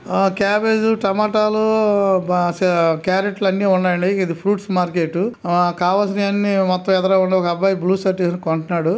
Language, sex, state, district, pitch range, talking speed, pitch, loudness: Telugu, male, Andhra Pradesh, Krishna, 180-200 Hz, 135 wpm, 190 Hz, -18 LUFS